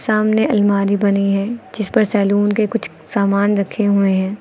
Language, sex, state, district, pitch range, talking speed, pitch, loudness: Hindi, female, Uttar Pradesh, Lucknow, 200-215 Hz, 175 wpm, 205 Hz, -17 LUFS